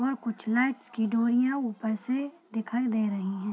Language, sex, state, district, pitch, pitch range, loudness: Hindi, female, Bihar, Purnia, 235 Hz, 220-255 Hz, -29 LUFS